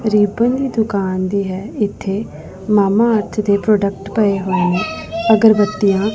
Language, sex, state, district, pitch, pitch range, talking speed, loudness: Punjabi, female, Punjab, Pathankot, 205 Hz, 195-220 Hz, 145 wpm, -16 LUFS